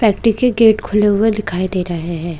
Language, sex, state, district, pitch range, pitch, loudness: Hindi, female, Chhattisgarh, Korba, 180-220 Hz, 205 Hz, -15 LUFS